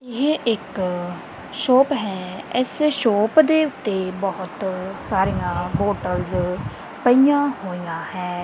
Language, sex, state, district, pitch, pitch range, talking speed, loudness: Punjabi, female, Punjab, Kapurthala, 205 Hz, 185-265 Hz, 100 wpm, -21 LUFS